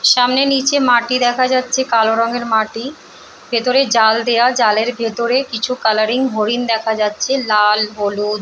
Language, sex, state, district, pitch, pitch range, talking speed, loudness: Bengali, female, West Bengal, Purulia, 235 Hz, 220-255 Hz, 140 wpm, -15 LUFS